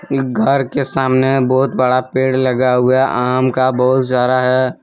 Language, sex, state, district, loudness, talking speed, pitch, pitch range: Hindi, male, Jharkhand, Deoghar, -14 LUFS, 185 wpm, 130 Hz, 125-130 Hz